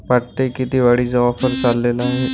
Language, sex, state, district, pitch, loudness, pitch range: Marathi, male, Maharashtra, Gondia, 125 Hz, -17 LUFS, 120-130 Hz